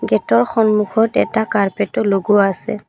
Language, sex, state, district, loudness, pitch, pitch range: Assamese, female, Assam, Kamrup Metropolitan, -16 LUFS, 205 Hz, 195-220 Hz